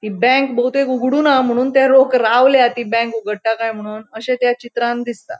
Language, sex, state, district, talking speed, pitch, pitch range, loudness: Konkani, female, Goa, North and South Goa, 190 wpm, 245 Hz, 225-260 Hz, -15 LUFS